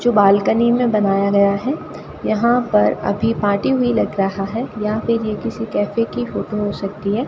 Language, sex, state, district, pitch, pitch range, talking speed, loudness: Hindi, female, Rajasthan, Bikaner, 210 Hz, 200-235 Hz, 200 wpm, -18 LUFS